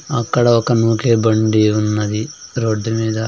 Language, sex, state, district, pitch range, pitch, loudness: Telugu, male, Andhra Pradesh, Sri Satya Sai, 110-115 Hz, 110 Hz, -16 LUFS